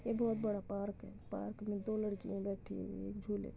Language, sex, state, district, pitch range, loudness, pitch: Hindi, female, Uttar Pradesh, Muzaffarnagar, 200-215 Hz, -41 LUFS, 205 Hz